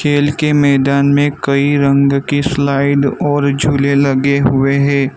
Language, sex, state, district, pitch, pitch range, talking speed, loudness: Hindi, male, Gujarat, Valsad, 140 Hz, 140-145 Hz, 150 wpm, -13 LUFS